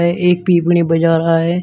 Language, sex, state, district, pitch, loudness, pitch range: Hindi, male, Uttar Pradesh, Shamli, 170 Hz, -14 LUFS, 165-175 Hz